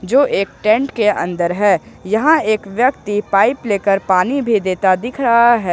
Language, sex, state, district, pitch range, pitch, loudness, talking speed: Hindi, male, Jharkhand, Ranchi, 190-240 Hz, 210 Hz, -15 LUFS, 180 wpm